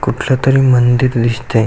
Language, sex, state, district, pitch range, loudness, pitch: Marathi, male, Maharashtra, Aurangabad, 120-130 Hz, -13 LUFS, 125 Hz